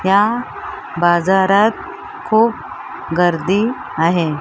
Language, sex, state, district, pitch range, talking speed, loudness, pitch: Marathi, female, Maharashtra, Mumbai Suburban, 170-215 Hz, 70 wpm, -16 LUFS, 190 Hz